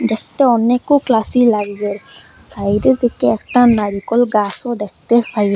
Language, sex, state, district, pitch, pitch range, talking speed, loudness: Bengali, female, Assam, Hailakandi, 230 Hz, 210-245 Hz, 120 wpm, -15 LUFS